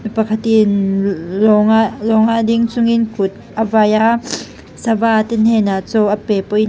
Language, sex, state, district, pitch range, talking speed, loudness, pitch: Mizo, female, Mizoram, Aizawl, 210-225 Hz, 150 wpm, -15 LUFS, 220 Hz